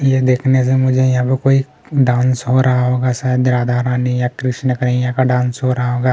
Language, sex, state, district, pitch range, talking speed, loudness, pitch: Hindi, male, Chhattisgarh, Kabirdham, 125-130 Hz, 215 wpm, -15 LUFS, 125 Hz